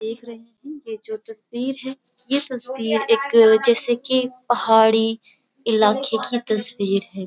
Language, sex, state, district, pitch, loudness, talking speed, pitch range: Hindi, female, Uttar Pradesh, Jyotiba Phule Nagar, 235 Hz, -19 LUFS, 140 wpm, 225-260 Hz